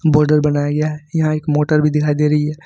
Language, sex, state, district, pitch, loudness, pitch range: Hindi, male, Jharkhand, Ranchi, 150 Hz, -16 LUFS, 150-155 Hz